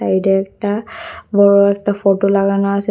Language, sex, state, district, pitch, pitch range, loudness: Bengali, female, Tripura, West Tripura, 200 Hz, 195-205 Hz, -15 LUFS